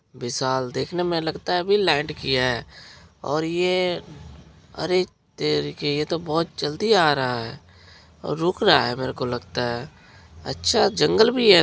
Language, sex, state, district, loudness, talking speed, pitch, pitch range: Hindi, male, Bihar, Araria, -22 LUFS, 170 wpm, 145 Hz, 120-170 Hz